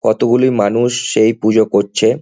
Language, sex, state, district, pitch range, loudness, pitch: Bengali, male, West Bengal, Jhargram, 110-120 Hz, -13 LUFS, 110 Hz